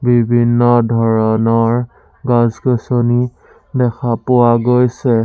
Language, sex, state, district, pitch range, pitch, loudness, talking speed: Assamese, male, Assam, Sonitpur, 115-125 Hz, 120 Hz, -14 LUFS, 70 wpm